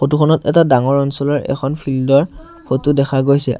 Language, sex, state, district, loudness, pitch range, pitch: Assamese, male, Assam, Sonitpur, -15 LUFS, 135-150 Hz, 140 Hz